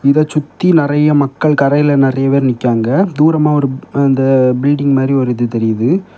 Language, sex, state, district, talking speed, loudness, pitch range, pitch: Tamil, male, Tamil Nadu, Kanyakumari, 155 wpm, -12 LUFS, 130-150 Hz, 140 Hz